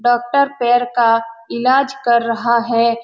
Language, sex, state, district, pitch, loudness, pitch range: Hindi, female, Bihar, Saran, 235 Hz, -15 LUFS, 230-245 Hz